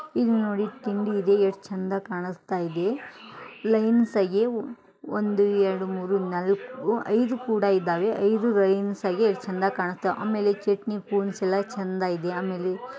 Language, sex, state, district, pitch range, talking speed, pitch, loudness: Kannada, female, Karnataka, Gulbarga, 190-215 Hz, 135 wpm, 200 Hz, -25 LUFS